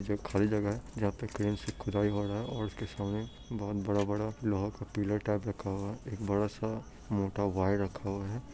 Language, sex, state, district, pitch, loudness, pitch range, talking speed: Hindi, male, Bihar, Purnia, 105 Hz, -34 LUFS, 100-110 Hz, 225 wpm